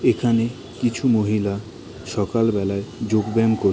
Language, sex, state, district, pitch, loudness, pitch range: Bengali, male, West Bengal, Jalpaiguri, 110 Hz, -22 LUFS, 100-115 Hz